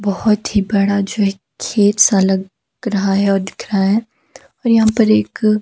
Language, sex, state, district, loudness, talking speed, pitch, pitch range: Hindi, female, Himachal Pradesh, Shimla, -15 LUFS, 205 wpm, 200 Hz, 195-215 Hz